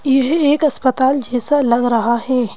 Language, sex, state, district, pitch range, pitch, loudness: Hindi, female, Madhya Pradesh, Bhopal, 245-285 Hz, 260 Hz, -15 LUFS